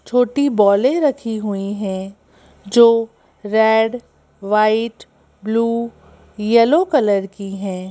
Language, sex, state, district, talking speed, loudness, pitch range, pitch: Hindi, female, Madhya Pradesh, Bhopal, 100 wpm, -17 LUFS, 200-235 Hz, 220 Hz